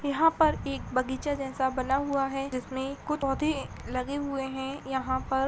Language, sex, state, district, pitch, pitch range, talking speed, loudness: Hindi, female, Bihar, Purnia, 270 Hz, 260-285 Hz, 175 wpm, -30 LUFS